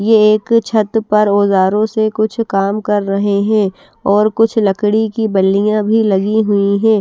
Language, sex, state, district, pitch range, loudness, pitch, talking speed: Hindi, female, Bihar, West Champaran, 200-220 Hz, -13 LUFS, 210 Hz, 170 wpm